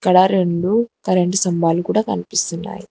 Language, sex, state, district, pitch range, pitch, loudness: Telugu, female, Telangana, Hyderabad, 175-200 Hz, 185 Hz, -18 LUFS